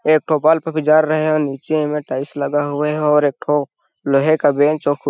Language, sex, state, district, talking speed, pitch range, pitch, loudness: Hindi, male, Chhattisgarh, Sarguja, 245 wpm, 145-155 Hz, 150 Hz, -17 LUFS